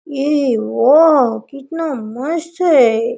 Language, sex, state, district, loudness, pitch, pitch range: Hindi, female, Jharkhand, Sahebganj, -14 LUFS, 275 Hz, 235-320 Hz